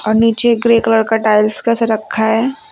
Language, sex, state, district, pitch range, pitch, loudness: Hindi, female, Uttar Pradesh, Lucknow, 220-235 Hz, 225 Hz, -13 LUFS